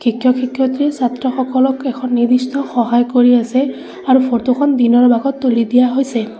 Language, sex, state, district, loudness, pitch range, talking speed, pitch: Assamese, female, Assam, Sonitpur, -14 LUFS, 240-265 Hz, 150 wpm, 255 Hz